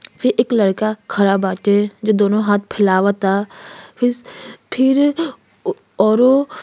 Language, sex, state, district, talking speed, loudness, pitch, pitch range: Bhojpuri, female, Uttar Pradesh, Ghazipur, 120 wpm, -16 LUFS, 215 Hz, 200-250 Hz